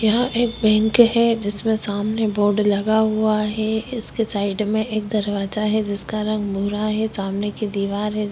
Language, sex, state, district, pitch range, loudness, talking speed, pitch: Hindi, female, Chhattisgarh, Korba, 205-220 Hz, -21 LUFS, 175 wpm, 215 Hz